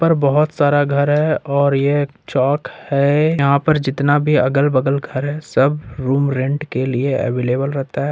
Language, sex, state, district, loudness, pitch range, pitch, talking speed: Hindi, male, Jharkhand, Ranchi, -17 LUFS, 135-145 Hz, 140 Hz, 185 wpm